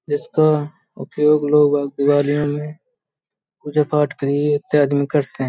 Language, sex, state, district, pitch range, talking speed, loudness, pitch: Hindi, male, Uttar Pradesh, Hamirpur, 145-150 Hz, 110 wpm, -18 LUFS, 145 Hz